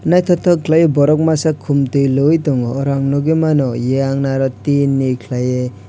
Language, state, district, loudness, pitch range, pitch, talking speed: Kokborok, Tripura, West Tripura, -15 LUFS, 135-155 Hz, 140 Hz, 175 wpm